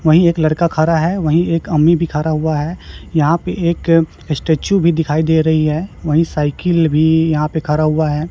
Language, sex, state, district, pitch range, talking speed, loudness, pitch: Hindi, male, Chhattisgarh, Raipur, 155-170 Hz, 210 wpm, -15 LUFS, 160 Hz